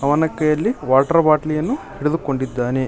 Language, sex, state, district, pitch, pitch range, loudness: Kannada, male, Karnataka, Koppal, 150 Hz, 130-155 Hz, -18 LUFS